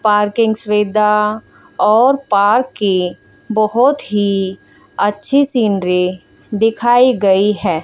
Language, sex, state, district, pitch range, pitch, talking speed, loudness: Hindi, female, Haryana, Jhajjar, 200-230 Hz, 210 Hz, 90 wpm, -14 LUFS